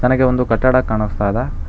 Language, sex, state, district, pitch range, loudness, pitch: Kannada, male, Karnataka, Bangalore, 100-130 Hz, -16 LUFS, 115 Hz